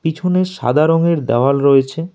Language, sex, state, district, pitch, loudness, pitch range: Bengali, male, West Bengal, Alipurduar, 160 Hz, -15 LUFS, 140-170 Hz